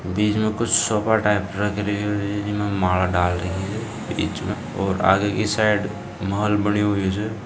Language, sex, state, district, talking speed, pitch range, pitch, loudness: Marwari, male, Rajasthan, Nagaur, 200 wpm, 95-105 Hz, 105 Hz, -22 LUFS